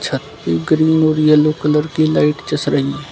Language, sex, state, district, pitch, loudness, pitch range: Hindi, male, Haryana, Charkhi Dadri, 150 Hz, -15 LUFS, 150-155 Hz